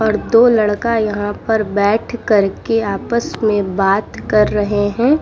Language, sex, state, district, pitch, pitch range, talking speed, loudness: Hindi, female, Uttar Pradesh, Muzaffarnagar, 210 Hz, 205-230 Hz, 150 wpm, -16 LUFS